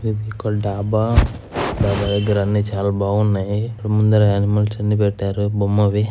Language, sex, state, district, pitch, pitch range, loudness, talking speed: Telugu, male, Andhra Pradesh, Anantapur, 105 Hz, 100-105 Hz, -19 LUFS, 120 wpm